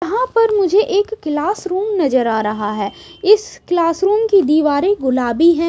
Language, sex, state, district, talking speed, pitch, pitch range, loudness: Hindi, female, Odisha, Sambalpur, 180 wpm, 355 Hz, 290-410 Hz, -16 LUFS